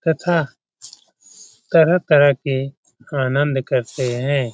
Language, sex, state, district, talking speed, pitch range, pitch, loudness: Hindi, male, Bihar, Jamui, 80 wpm, 135-155 Hz, 140 Hz, -18 LUFS